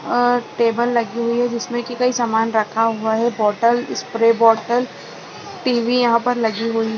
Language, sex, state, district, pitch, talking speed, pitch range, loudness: Hindi, female, Chhattisgarh, Balrampur, 235 Hz, 180 wpm, 225-245 Hz, -18 LUFS